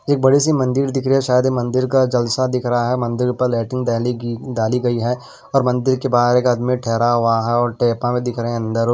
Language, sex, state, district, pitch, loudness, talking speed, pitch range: Hindi, male, Maharashtra, Washim, 125 Hz, -18 LUFS, 260 wpm, 120-130 Hz